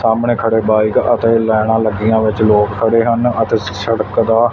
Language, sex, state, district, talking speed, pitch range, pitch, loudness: Punjabi, male, Punjab, Fazilka, 200 wpm, 110-115 Hz, 115 Hz, -14 LUFS